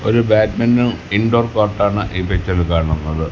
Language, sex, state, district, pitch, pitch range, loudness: Malayalam, male, Kerala, Kasaragod, 105 Hz, 85-110 Hz, -16 LUFS